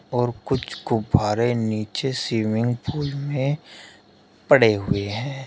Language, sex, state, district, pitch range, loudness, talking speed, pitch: Hindi, male, Uttar Pradesh, Shamli, 110-135 Hz, -22 LUFS, 110 wpm, 120 Hz